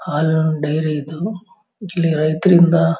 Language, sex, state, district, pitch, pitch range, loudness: Kannada, male, Karnataka, Mysore, 165 Hz, 155-185 Hz, -17 LUFS